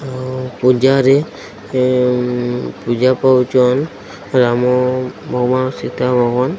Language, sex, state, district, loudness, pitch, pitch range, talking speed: Odia, male, Odisha, Sambalpur, -15 LUFS, 125 Hz, 125-130 Hz, 110 wpm